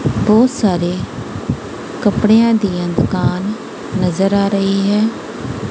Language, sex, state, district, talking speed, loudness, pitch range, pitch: Punjabi, female, Punjab, Kapurthala, 95 wpm, -16 LUFS, 185-215 Hz, 200 Hz